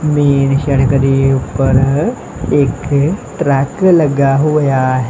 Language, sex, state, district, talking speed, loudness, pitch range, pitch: Punjabi, male, Punjab, Kapurthala, 105 wpm, -13 LUFS, 135-145 Hz, 140 Hz